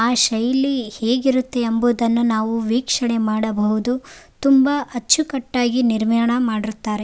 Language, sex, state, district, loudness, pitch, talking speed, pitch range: Kannada, female, Karnataka, Raichur, -19 LUFS, 240 Hz, 95 wpm, 225-255 Hz